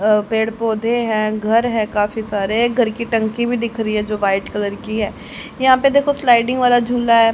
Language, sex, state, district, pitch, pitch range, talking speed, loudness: Hindi, female, Haryana, Rohtak, 225 Hz, 215-240 Hz, 220 wpm, -17 LUFS